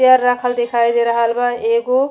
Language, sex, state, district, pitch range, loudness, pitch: Bhojpuri, female, Uttar Pradesh, Ghazipur, 235-250 Hz, -16 LUFS, 240 Hz